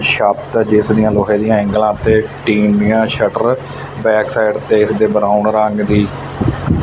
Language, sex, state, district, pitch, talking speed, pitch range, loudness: Punjabi, male, Punjab, Fazilka, 110 Hz, 160 wpm, 105-110 Hz, -14 LUFS